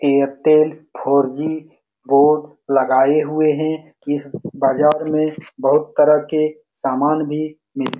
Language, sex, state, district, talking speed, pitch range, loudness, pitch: Hindi, male, Bihar, Saran, 125 wpm, 140-155 Hz, -18 LUFS, 150 Hz